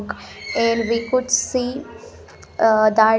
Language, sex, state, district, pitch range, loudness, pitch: English, female, Punjab, Pathankot, 220-255 Hz, -19 LUFS, 230 Hz